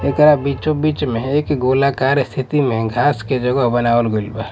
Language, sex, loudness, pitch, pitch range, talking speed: Bhojpuri, male, -17 LUFS, 135 Hz, 120-145 Hz, 185 wpm